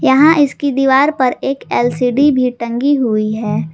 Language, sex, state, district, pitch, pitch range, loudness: Hindi, female, Jharkhand, Garhwa, 265 Hz, 240-285 Hz, -14 LUFS